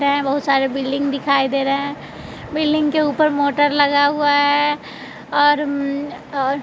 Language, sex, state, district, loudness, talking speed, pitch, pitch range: Hindi, female, Bihar, West Champaran, -18 LUFS, 155 wpm, 285 Hz, 275-290 Hz